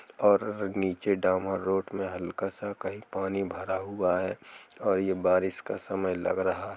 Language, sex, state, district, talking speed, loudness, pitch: Hindi, male, Jharkhand, Jamtara, 185 wpm, -29 LUFS, 95 Hz